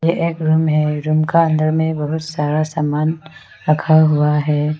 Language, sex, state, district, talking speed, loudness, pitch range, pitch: Hindi, female, Arunachal Pradesh, Lower Dibang Valley, 150 wpm, -17 LUFS, 150-160 Hz, 155 Hz